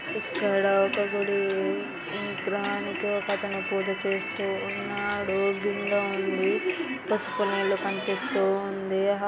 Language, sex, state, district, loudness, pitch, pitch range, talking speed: Telugu, female, Andhra Pradesh, Anantapur, -27 LUFS, 200 Hz, 195-205 Hz, 90 wpm